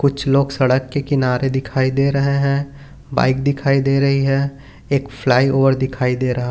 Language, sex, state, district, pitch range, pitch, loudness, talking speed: Hindi, male, Chhattisgarh, Bilaspur, 130-140 Hz, 135 Hz, -17 LUFS, 175 wpm